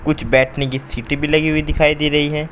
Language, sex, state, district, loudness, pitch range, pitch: Hindi, male, Uttar Pradesh, Saharanpur, -17 LUFS, 130-155 Hz, 150 Hz